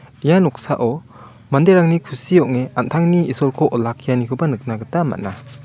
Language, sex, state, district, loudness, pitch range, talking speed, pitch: Garo, male, Meghalaya, West Garo Hills, -17 LUFS, 125-165 Hz, 115 wpm, 130 Hz